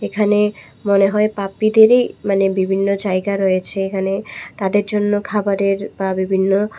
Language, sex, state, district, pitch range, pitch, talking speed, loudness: Bengali, female, Tripura, West Tripura, 195-210 Hz, 200 Hz, 130 wpm, -17 LUFS